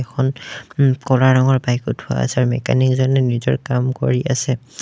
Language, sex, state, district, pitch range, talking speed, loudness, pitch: Assamese, male, Assam, Sonitpur, 125-130 Hz, 175 wpm, -17 LUFS, 130 Hz